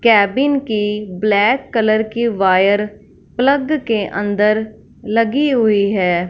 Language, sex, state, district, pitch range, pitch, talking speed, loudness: Hindi, female, Punjab, Fazilka, 205-240 Hz, 215 Hz, 115 wpm, -16 LUFS